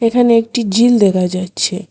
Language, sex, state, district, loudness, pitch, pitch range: Bengali, female, Assam, Hailakandi, -13 LUFS, 220 Hz, 185-235 Hz